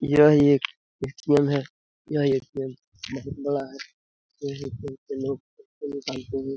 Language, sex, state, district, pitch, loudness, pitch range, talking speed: Hindi, male, Bihar, Jamui, 140 Hz, -25 LUFS, 135-145 Hz, 145 wpm